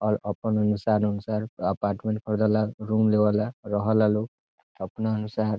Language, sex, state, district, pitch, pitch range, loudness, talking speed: Bhojpuri, male, Bihar, Saran, 105 Hz, 105-110 Hz, -25 LUFS, 150 wpm